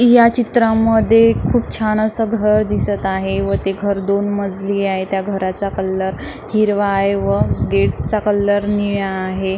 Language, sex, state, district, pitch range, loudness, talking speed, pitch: Marathi, female, Maharashtra, Nagpur, 190-215 Hz, -16 LUFS, 150 wpm, 200 Hz